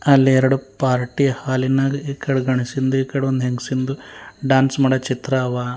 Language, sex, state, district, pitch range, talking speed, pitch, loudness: Kannada, male, Karnataka, Bidar, 130-135 Hz, 135 wpm, 130 Hz, -19 LUFS